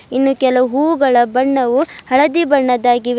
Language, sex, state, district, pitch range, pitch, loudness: Kannada, female, Karnataka, Bidar, 250-285 Hz, 260 Hz, -14 LUFS